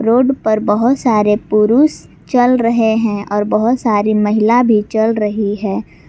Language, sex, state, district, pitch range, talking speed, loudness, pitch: Hindi, female, Jharkhand, Garhwa, 210-235 Hz, 155 wpm, -14 LUFS, 220 Hz